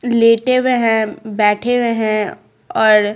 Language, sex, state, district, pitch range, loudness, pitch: Hindi, female, Bihar, Patna, 215-240 Hz, -15 LUFS, 225 Hz